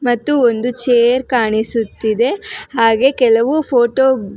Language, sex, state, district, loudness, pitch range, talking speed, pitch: Kannada, female, Karnataka, Bangalore, -14 LUFS, 230-265 Hz, 110 wpm, 245 Hz